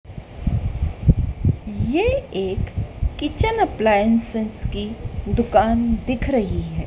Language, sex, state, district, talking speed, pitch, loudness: Hindi, female, Madhya Pradesh, Dhar, 80 wpm, 220 Hz, -21 LUFS